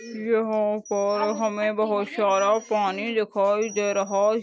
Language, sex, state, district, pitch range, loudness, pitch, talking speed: Hindi, female, Goa, North and South Goa, 205-220 Hz, -24 LUFS, 210 Hz, 135 wpm